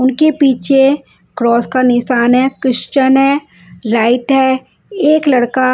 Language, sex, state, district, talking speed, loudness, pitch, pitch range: Hindi, female, Punjab, Fazilka, 135 wpm, -12 LUFS, 260 Hz, 240-275 Hz